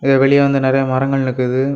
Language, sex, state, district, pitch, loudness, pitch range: Tamil, male, Tamil Nadu, Kanyakumari, 135 Hz, -15 LUFS, 130-135 Hz